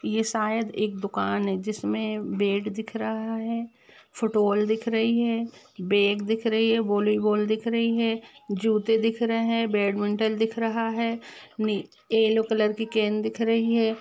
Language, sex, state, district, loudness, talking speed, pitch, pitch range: Hindi, female, Jharkhand, Jamtara, -25 LUFS, 155 wpm, 220 Hz, 210-230 Hz